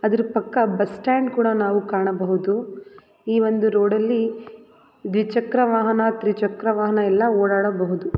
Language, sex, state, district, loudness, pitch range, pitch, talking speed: Kannada, female, Karnataka, Belgaum, -20 LUFS, 205-225 Hz, 215 Hz, 125 wpm